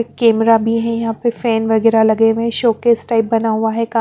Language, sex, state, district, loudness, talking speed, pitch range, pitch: Hindi, female, Bihar, West Champaran, -15 LUFS, 270 wpm, 225-230 Hz, 225 Hz